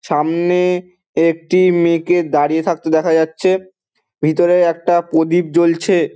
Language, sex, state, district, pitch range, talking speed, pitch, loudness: Bengali, male, West Bengal, Dakshin Dinajpur, 160-180 Hz, 115 wpm, 170 Hz, -15 LUFS